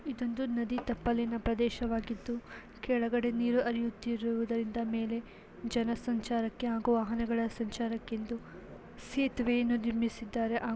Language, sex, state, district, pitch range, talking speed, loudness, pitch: Kannada, female, Karnataka, Belgaum, 230-240 Hz, 95 wpm, -33 LUFS, 235 Hz